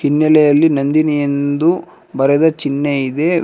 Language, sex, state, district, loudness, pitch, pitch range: Kannada, male, Karnataka, Bangalore, -14 LUFS, 145 Hz, 140-155 Hz